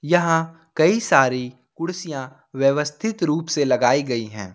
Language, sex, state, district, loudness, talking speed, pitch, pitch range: Hindi, male, Jharkhand, Ranchi, -21 LUFS, 130 wpm, 145 Hz, 130-165 Hz